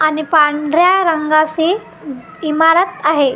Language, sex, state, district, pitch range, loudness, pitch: Marathi, female, Maharashtra, Gondia, 300-335 Hz, -13 LUFS, 310 Hz